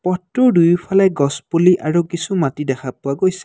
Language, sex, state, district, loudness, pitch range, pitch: Assamese, male, Assam, Kamrup Metropolitan, -17 LUFS, 140-185 Hz, 170 Hz